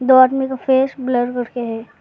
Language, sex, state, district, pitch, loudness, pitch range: Hindi, male, Arunachal Pradesh, Lower Dibang Valley, 255 Hz, -17 LUFS, 245-265 Hz